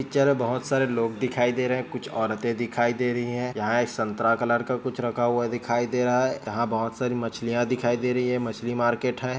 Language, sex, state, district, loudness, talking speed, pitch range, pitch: Hindi, male, Chhattisgarh, Bilaspur, -25 LUFS, 245 wpm, 120-125 Hz, 120 Hz